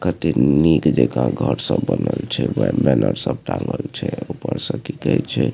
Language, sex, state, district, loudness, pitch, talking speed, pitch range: Maithili, male, Bihar, Supaul, -19 LUFS, 75 Hz, 215 wpm, 60-80 Hz